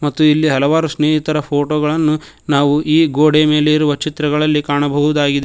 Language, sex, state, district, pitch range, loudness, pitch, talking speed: Kannada, male, Karnataka, Koppal, 145-155 Hz, -14 LUFS, 150 Hz, 145 wpm